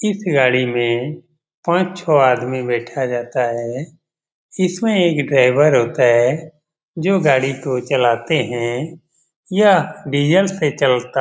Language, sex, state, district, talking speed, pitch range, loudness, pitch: Hindi, male, Bihar, Jamui, 125 wpm, 125-170 Hz, -17 LUFS, 150 Hz